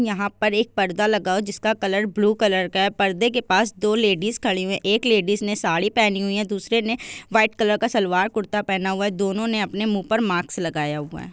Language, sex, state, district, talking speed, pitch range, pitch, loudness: Hindi, female, Bihar, Jahanabad, 260 wpm, 195-220 Hz, 210 Hz, -21 LUFS